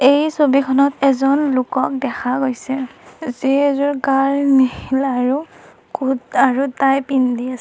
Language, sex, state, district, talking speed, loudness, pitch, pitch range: Assamese, female, Assam, Kamrup Metropolitan, 125 wpm, -17 LUFS, 270 Hz, 260-280 Hz